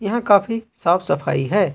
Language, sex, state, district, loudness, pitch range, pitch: Hindi, male, Jharkhand, Ranchi, -19 LUFS, 170-225 Hz, 205 Hz